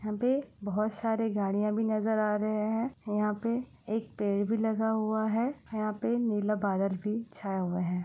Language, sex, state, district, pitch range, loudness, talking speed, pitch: Hindi, female, Bihar, Saran, 210-225 Hz, -31 LUFS, 195 wpm, 215 Hz